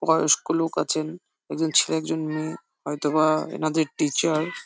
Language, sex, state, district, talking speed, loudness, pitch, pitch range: Bengali, female, West Bengal, Jhargram, 180 wpm, -24 LUFS, 155 Hz, 155-160 Hz